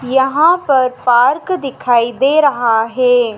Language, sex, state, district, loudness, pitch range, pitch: Hindi, female, Madhya Pradesh, Dhar, -13 LUFS, 240-285 Hz, 255 Hz